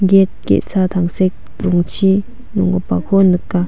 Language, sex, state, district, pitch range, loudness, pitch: Garo, female, Meghalaya, West Garo Hills, 175-195 Hz, -15 LUFS, 185 Hz